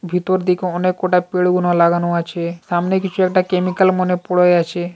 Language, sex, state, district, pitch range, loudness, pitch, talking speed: Bengali, female, West Bengal, Paschim Medinipur, 175-185 Hz, -17 LUFS, 180 Hz, 195 wpm